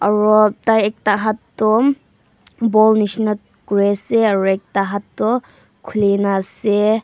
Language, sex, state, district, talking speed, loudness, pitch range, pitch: Nagamese, female, Nagaland, Dimapur, 120 wpm, -17 LUFS, 200-220 Hz, 210 Hz